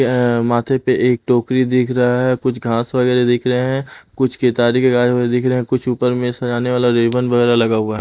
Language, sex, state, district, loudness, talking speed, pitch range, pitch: Hindi, male, Punjab, Pathankot, -16 LUFS, 225 wpm, 120-125 Hz, 125 Hz